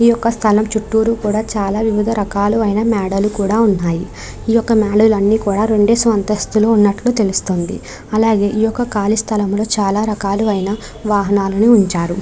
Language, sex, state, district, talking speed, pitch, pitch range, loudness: Telugu, female, Andhra Pradesh, Krishna, 150 wpm, 210 Hz, 200-220 Hz, -15 LUFS